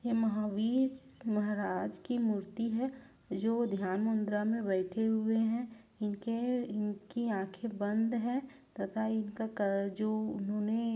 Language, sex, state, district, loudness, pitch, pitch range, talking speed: Hindi, female, Chhattisgarh, Raigarh, -34 LUFS, 220 Hz, 210-235 Hz, 125 wpm